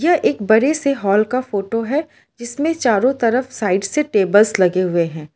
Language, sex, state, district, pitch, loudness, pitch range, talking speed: Hindi, female, Gujarat, Valsad, 230 Hz, -17 LUFS, 200-275 Hz, 180 wpm